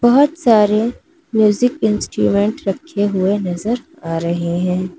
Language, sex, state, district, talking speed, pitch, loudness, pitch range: Hindi, female, Uttar Pradesh, Lalitpur, 120 wpm, 210 Hz, -17 LUFS, 185-240 Hz